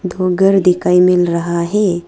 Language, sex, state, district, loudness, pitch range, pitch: Hindi, female, Arunachal Pradesh, Lower Dibang Valley, -13 LUFS, 175-190 Hz, 180 Hz